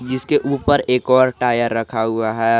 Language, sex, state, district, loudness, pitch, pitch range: Hindi, male, Jharkhand, Garhwa, -17 LUFS, 125 Hz, 115-130 Hz